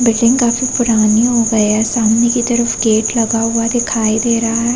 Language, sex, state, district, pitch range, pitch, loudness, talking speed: Hindi, female, Chhattisgarh, Sarguja, 225-240 Hz, 230 Hz, -13 LUFS, 200 wpm